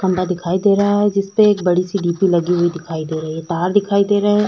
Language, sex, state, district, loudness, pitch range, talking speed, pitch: Hindi, female, Uttar Pradesh, Budaun, -17 LUFS, 175-205 Hz, 295 wpm, 185 Hz